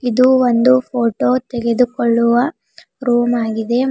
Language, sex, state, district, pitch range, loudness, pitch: Kannada, female, Karnataka, Bidar, 235-255 Hz, -15 LUFS, 245 Hz